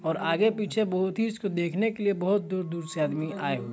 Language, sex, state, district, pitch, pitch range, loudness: Hindi, male, Chhattisgarh, Sarguja, 185 Hz, 165-210 Hz, -28 LUFS